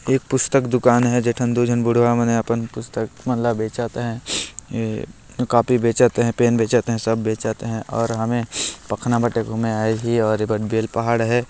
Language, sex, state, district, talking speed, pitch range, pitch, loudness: Hindi, male, Chhattisgarh, Jashpur, 210 wpm, 110-120 Hz, 115 Hz, -20 LUFS